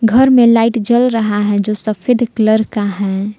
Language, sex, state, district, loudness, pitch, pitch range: Hindi, female, Jharkhand, Palamu, -13 LUFS, 220 Hz, 210-235 Hz